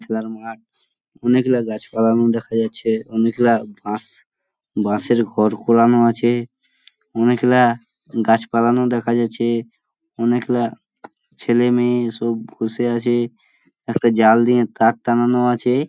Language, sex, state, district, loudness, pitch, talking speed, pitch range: Bengali, male, West Bengal, Purulia, -18 LUFS, 115 Hz, 130 wpm, 115-120 Hz